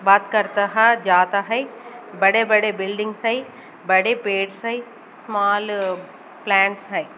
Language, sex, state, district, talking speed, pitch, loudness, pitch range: Hindi, female, Maharashtra, Gondia, 125 wpm, 205 Hz, -19 LUFS, 195-230 Hz